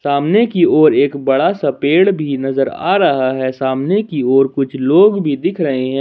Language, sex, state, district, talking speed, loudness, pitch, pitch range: Hindi, male, Jharkhand, Ranchi, 210 wpm, -14 LUFS, 140 Hz, 135-165 Hz